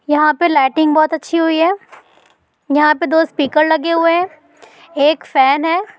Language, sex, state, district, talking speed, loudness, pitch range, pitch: Hindi, female, Bihar, Gopalganj, 170 wpm, -14 LUFS, 300-335 Hz, 315 Hz